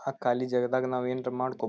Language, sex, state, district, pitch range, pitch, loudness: Kannada, male, Karnataka, Belgaum, 125-130 Hz, 125 Hz, -29 LUFS